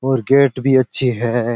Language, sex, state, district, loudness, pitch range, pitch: Rajasthani, male, Rajasthan, Churu, -15 LUFS, 120-135 Hz, 130 Hz